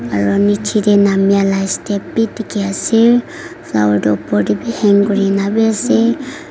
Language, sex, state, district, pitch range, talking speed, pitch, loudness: Nagamese, female, Nagaland, Kohima, 195-225 Hz, 175 wpm, 200 Hz, -14 LUFS